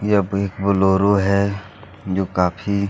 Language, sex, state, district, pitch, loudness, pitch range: Hindi, male, Chhattisgarh, Kabirdham, 100 Hz, -19 LUFS, 95-100 Hz